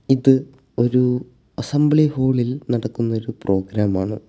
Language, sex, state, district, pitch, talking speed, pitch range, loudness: Malayalam, male, Kerala, Kollam, 125 Hz, 100 wpm, 115-135 Hz, -20 LUFS